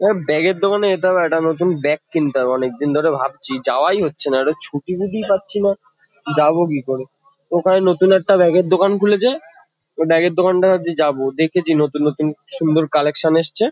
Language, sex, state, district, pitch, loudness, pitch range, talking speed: Bengali, male, West Bengal, Kolkata, 170 Hz, -17 LUFS, 150-190 Hz, 190 wpm